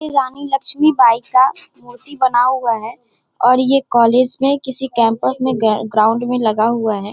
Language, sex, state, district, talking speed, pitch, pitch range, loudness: Hindi, female, Bihar, Darbhanga, 185 wpm, 250 Hz, 230-265 Hz, -15 LUFS